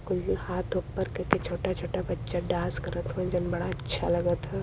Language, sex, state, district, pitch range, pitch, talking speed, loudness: Bhojpuri, female, Uttar Pradesh, Varanasi, 135-175 Hz, 175 Hz, 170 wpm, -30 LUFS